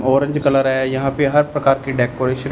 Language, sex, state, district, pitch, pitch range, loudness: Hindi, male, Punjab, Fazilka, 135 Hz, 130-140 Hz, -17 LUFS